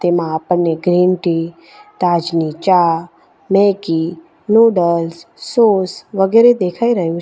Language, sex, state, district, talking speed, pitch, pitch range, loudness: Gujarati, female, Gujarat, Valsad, 110 wpm, 175 Hz, 170-200 Hz, -15 LUFS